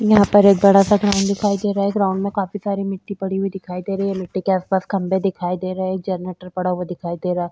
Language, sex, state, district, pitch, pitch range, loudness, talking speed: Hindi, female, Chhattisgarh, Sukma, 195 Hz, 185-200 Hz, -19 LUFS, 270 wpm